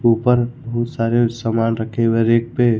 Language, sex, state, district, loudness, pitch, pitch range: Hindi, male, Jharkhand, Ranchi, -18 LUFS, 115 Hz, 115-120 Hz